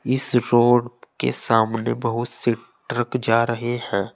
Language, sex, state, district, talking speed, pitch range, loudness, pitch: Hindi, male, Uttar Pradesh, Saharanpur, 145 wpm, 115-120 Hz, -21 LUFS, 120 Hz